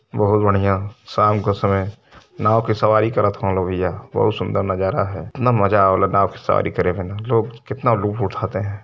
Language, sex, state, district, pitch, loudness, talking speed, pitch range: Hindi, male, Uttar Pradesh, Varanasi, 100 Hz, -19 LUFS, 205 wpm, 95-110 Hz